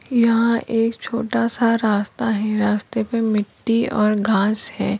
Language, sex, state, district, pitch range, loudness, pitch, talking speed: Hindi, female, Maharashtra, Solapur, 210-230 Hz, -20 LUFS, 225 Hz, 130 wpm